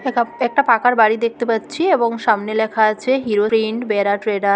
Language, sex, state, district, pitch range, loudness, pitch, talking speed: Bengali, female, West Bengal, Jhargram, 215-240 Hz, -17 LUFS, 225 Hz, 185 wpm